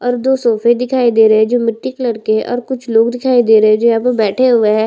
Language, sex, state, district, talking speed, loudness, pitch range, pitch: Hindi, female, Chhattisgarh, Bastar, 305 wpm, -13 LUFS, 220-245 Hz, 235 Hz